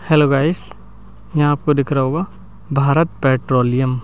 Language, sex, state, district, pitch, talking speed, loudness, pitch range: Hindi, male, Madhya Pradesh, Bhopal, 140 Hz, 135 wpm, -17 LUFS, 130-150 Hz